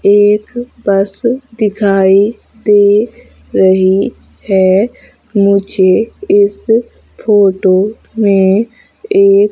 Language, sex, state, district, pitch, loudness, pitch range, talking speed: Hindi, female, Madhya Pradesh, Umaria, 210 Hz, -11 LUFS, 195-240 Hz, 75 wpm